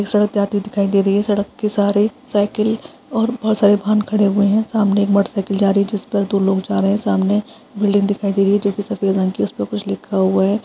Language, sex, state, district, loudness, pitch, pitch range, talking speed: Hindi, female, Uttar Pradesh, Budaun, -17 LUFS, 205 Hz, 200-210 Hz, 275 wpm